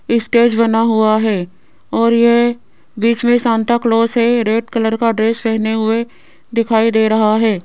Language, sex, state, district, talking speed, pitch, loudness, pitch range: Hindi, female, Rajasthan, Jaipur, 165 wpm, 230 Hz, -14 LUFS, 220-235 Hz